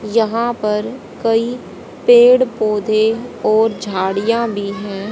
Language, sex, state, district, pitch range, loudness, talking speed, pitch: Hindi, female, Haryana, Charkhi Dadri, 210-235 Hz, -16 LUFS, 105 wpm, 220 Hz